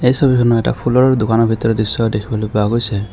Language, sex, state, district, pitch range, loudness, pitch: Assamese, male, Assam, Kamrup Metropolitan, 110-125 Hz, -15 LUFS, 115 Hz